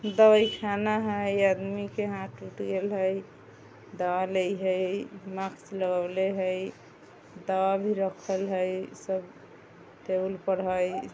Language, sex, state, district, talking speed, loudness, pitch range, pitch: Bajjika, female, Bihar, Vaishali, 130 wpm, -28 LUFS, 185-200 Hz, 190 Hz